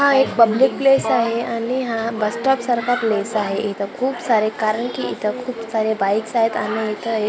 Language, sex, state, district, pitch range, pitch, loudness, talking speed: Marathi, female, Maharashtra, Gondia, 215-245 Hz, 225 Hz, -19 LUFS, 205 wpm